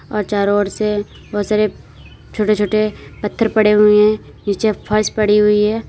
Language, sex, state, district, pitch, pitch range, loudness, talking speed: Hindi, female, Uttar Pradesh, Lalitpur, 210 Hz, 210-215 Hz, -16 LUFS, 175 wpm